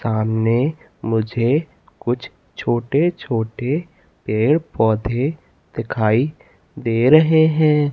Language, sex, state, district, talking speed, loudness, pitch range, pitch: Hindi, male, Madhya Pradesh, Katni, 85 wpm, -19 LUFS, 115-155 Hz, 125 Hz